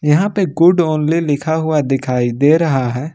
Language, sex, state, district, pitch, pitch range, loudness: Hindi, male, Jharkhand, Ranchi, 155 Hz, 135-165 Hz, -15 LUFS